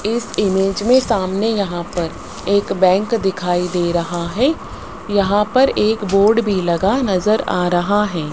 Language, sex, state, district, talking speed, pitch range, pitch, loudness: Hindi, female, Rajasthan, Jaipur, 160 wpm, 180-215 Hz, 195 Hz, -17 LUFS